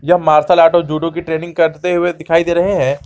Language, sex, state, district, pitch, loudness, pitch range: Hindi, male, Jharkhand, Garhwa, 165 Hz, -14 LUFS, 160-175 Hz